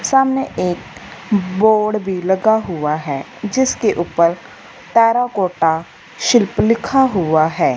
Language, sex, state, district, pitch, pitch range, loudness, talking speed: Hindi, female, Punjab, Fazilka, 200 Hz, 170-230 Hz, -16 LUFS, 110 wpm